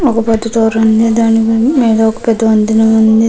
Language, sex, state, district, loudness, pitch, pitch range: Telugu, female, Andhra Pradesh, Krishna, -10 LUFS, 225 Hz, 220-230 Hz